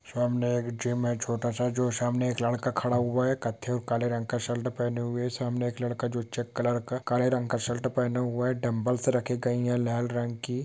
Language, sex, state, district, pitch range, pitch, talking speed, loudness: Hindi, male, West Bengal, Dakshin Dinajpur, 120-125 Hz, 120 Hz, 225 wpm, -29 LUFS